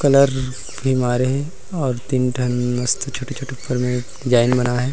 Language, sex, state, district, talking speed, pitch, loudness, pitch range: Chhattisgarhi, male, Chhattisgarh, Rajnandgaon, 180 wpm, 130 Hz, -20 LUFS, 125-135 Hz